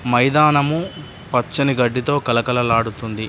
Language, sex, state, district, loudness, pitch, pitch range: Telugu, male, Telangana, Adilabad, -18 LUFS, 125 Hz, 120-145 Hz